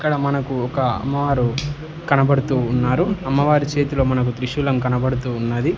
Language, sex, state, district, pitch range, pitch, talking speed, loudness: Telugu, male, Telangana, Hyderabad, 125-145 Hz, 135 Hz, 125 wpm, -20 LUFS